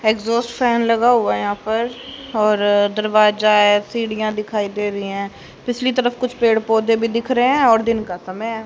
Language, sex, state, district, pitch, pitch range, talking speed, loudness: Hindi, female, Haryana, Jhajjar, 225 Hz, 210-235 Hz, 200 wpm, -18 LUFS